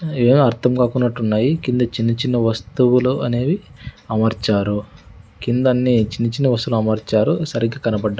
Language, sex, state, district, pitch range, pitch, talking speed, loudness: Telugu, male, Andhra Pradesh, Sri Satya Sai, 110-125 Hz, 120 Hz, 110 wpm, -18 LUFS